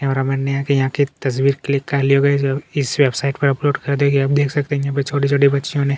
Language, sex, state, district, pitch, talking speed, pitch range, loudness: Hindi, male, Chhattisgarh, Kabirdham, 140 Hz, 260 wpm, 135-140 Hz, -18 LUFS